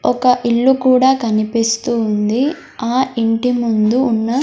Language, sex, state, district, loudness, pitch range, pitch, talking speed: Telugu, female, Andhra Pradesh, Sri Satya Sai, -15 LUFS, 225-260 Hz, 235 Hz, 120 wpm